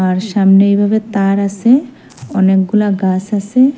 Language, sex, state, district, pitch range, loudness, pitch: Bengali, female, Assam, Hailakandi, 195-215 Hz, -13 LUFS, 200 Hz